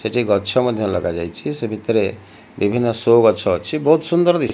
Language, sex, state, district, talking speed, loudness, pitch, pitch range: Odia, male, Odisha, Malkangiri, 200 wpm, -18 LUFS, 115 Hz, 110-150 Hz